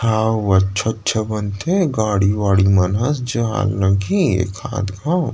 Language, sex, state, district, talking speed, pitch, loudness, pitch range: Chhattisgarhi, male, Chhattisgarh, Rajnandgaon, 125 wpm, 105 Hz, -18 LUFS, 100-115 Hz